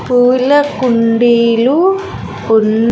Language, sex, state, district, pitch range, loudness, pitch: Telugu, female, Andhra Pradesh, Sri Satya Sai, 230-265 Hz, -11 LUFS, 245 Hz